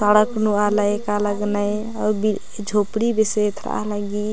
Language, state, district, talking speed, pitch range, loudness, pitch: Kurukh, Chhattisgarh, Jashpur, 140 wpm, 205-215 Hz, -21 LUFS, 210 Hz